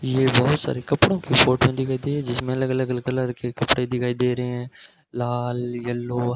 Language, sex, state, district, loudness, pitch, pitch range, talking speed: Hindi, male, Rajasthan, Bikaner, -22 LUFS, 125 Hz, 120-130 Hz, 200 wpm